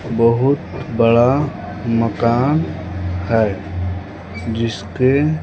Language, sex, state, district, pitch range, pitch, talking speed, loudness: Hindi, male, Bihar, West Champaran, 100-125 Hz, 115 Hz, 55 wpm, -18 LUFS